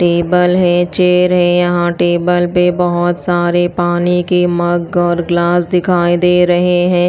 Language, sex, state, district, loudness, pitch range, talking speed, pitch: Hindi, female, Chandigarh, Chandigarh, -12 LUFS, 175-180 Hz, 150 wpm, 175 Hz